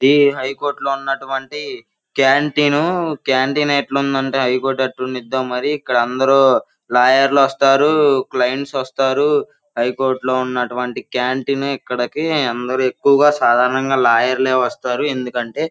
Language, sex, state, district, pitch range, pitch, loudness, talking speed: Telugu, male, Andhra Pradesh, Guntur, 130-140 Hz, 135 Hz, -17 LUFS, 130 wpm